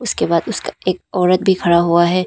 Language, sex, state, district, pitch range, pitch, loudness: Hindi, female, Arunachal Pradesh, Papum Pare, 170-190 Hz, 180 Hz, -16 LUFS